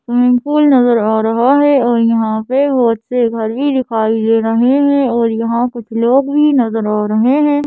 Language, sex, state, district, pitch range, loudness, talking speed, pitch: Hindi, female, Madhya Pradesh, Bhopal, 225-275 Hz, -13 LUFS, 190 wpm, 240 Hz